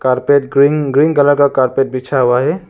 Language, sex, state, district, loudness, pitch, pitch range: Hindi, male, Arunachal Pradesh, Lower Dibang Valley, -13 LUFS, 140 Hz, 130-145 Hz